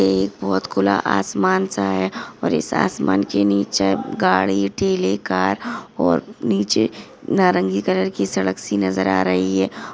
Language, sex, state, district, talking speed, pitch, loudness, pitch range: Hindi, female, Maharashtra, Aurangabad, 155 wpm, 95 Hz, -19 LUFS, 95-100 Hz